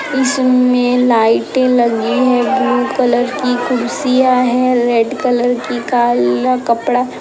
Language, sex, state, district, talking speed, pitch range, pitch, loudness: Hindi, female, Uttar Pradesh, Etah, 125 wpm, 240-255 Hz, 250 Hz, -13 LUFS